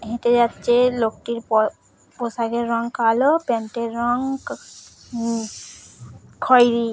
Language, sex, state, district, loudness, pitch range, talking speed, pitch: Bengali, female, West Bengal, Dakshin Dinajpur, -20 LUFS, 230-245 Hz, 130 wpm, 235 Hz